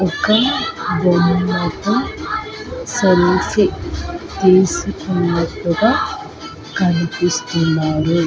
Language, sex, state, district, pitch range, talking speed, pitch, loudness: Telugu, female, Andhra Pradesh, Annamaya, 170-190 Hz, 35 wpm, 180 Hz, -17 LUFS